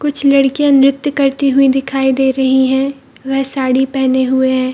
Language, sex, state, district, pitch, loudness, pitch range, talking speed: Hindi, female, Bihar, Purnia, 270 Hz, -13 LUFS, 265-275 Hz, 175 wpm